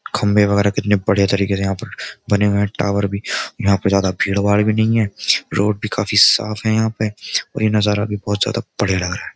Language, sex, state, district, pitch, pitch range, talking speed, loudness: Hindi, male, Uttar Pradesh, Jyotiba Phule Nagar, 105 Hz, 100-110 Hz, 245 wpm, -17 LUFS